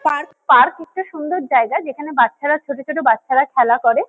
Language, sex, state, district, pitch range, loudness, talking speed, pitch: Bengali, female, West Bengal, Kolkata, 270-325 Hz, -16 LUFS, 190 wpm, 295 Hz